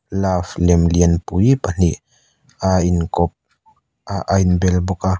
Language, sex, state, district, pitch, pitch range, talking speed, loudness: Mizo, male, Mizoram, Aizawl, 90 Hz, 85-95 Hz, 125 wpm, -17 LUFS